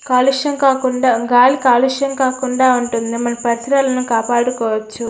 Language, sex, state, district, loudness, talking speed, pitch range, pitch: Telugu, female, Andhra Pradesh, Srikakulam, -15 LUFS, 105 wpm, 235-260 Hz, 250 Hz